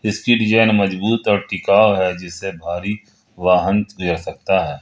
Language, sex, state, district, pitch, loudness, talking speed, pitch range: Hindi, male, Jharkhand, Ranchi, 100 Hz, -17 LUFS, 160 wpm, 90-110 Hz